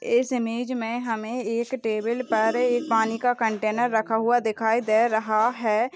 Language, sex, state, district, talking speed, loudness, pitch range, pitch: Hindi, female, Rajasthan, Churu, 170 wpm, -24 LUFS, 220-245 Hz, 230 Hz